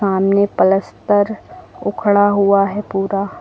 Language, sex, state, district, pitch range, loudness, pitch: Hindi, female, Uttar Pradesh, Lucknow, 195-205 Hz, -16 LUFS, 200 Hz